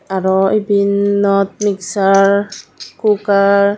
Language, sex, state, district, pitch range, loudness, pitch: Chakma, female, Tripura, Dhalai, 195-205 Hz, -14 LUFS, 200 Hz